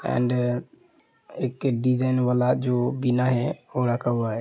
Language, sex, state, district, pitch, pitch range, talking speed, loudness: Hindi, male, Uttar Pradesh, Hamirpur, 125 Hz, 120-125 Hz, 150 wpm, -24 LUFS